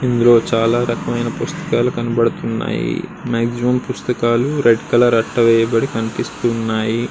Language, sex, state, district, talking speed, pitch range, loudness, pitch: Telugu, male, Andhra Pradesh, Srikakulam, 100 wpm, 115-120 Hz, -17 LUFS, 120 Hz